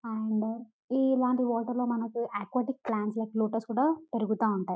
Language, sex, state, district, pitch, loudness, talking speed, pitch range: Telugu, female, Telangana, Karimnagar, 230 Hz, -30 LUFS, 140 wpm, 220-250 Hz